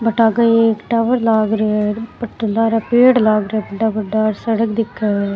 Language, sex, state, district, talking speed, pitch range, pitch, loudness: Rajasthani, female, Rajasthan, Churu, 200 wpm, 215-230 Hz, 225 Hz, -16 LUFS